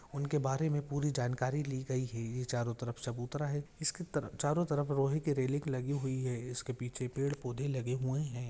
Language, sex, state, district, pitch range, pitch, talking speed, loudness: Hindi, male, Maharashtra, Aurangabad, 125-145 Hz, 135 Hz, 205 wpm, -36 LUFS